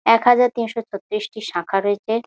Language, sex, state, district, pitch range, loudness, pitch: Bengali, female, West Bengal, Jhargram, 205-230 Hz, -20 LUFS, 220 Hz